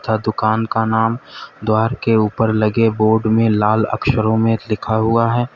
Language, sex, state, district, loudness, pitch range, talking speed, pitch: Hindi, male, Uttar Pradesh, Lalitpur, -16 LUFS, 110-115 Hz, 175 wpm, 110 Hz